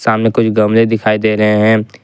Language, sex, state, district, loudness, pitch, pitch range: Hindi, male, Jharkhand, Ranchi, -12 LUFS, 110 Hz, 105-115 Hz